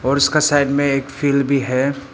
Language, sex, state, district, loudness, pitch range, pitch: Hindi, male, Arunachal Pradesh, Papum Pare, -17 LUFS, 135-140 Hz, 140 Hz